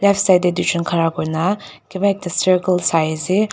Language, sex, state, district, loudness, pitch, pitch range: Nagamese, female, Nagaland, Dimapur, -18 LUFS, 180 Hz, 165-195 Hz